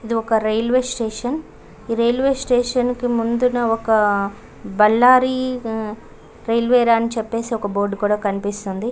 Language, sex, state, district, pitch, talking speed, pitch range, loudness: Telugu, female, Karnataka, Bellary, 230 Hz, 130 wpm, 215-245 Hz, -19 LUFS